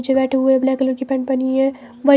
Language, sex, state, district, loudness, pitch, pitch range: Hindi, female, Himachal Pradesh, Shimla, -18 LUFS, 265 Hz, 260-265 Hz